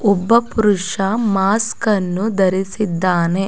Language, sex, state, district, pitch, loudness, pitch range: Kannada, female, Karnataka, Dakshina Kannada, 200 Hz, -17 LUFS, 190-215 Hz